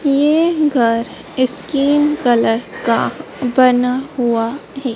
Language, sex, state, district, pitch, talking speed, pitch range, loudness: Hindi, female, Madhya Pradesh, Dhar, 255 Hz, 95 wpm, 240-285 Hz, -16 LUFS